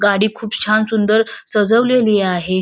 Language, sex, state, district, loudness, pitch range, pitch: Marathi, female, Maharashtra, Solapur, -15 LUFS, 205-225 Hz, 215 Hz